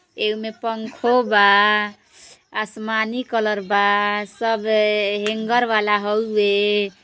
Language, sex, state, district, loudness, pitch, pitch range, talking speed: Bhojpuri, female, Uttar Pradesh, Gorakhpur, -19 LUFS, 215 Hz, 205-225 Hz, 95 wpm